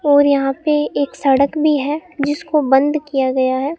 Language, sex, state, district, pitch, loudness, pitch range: Hindi, female, Rajasthan, Bikaner, 285 Hz, -16 LUFS, 270-300 Hz